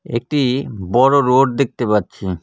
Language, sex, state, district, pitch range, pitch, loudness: Bengali, male, West Bengal, Cooch Behar, 105-140 Hz, 125 Hz, -16 LUFS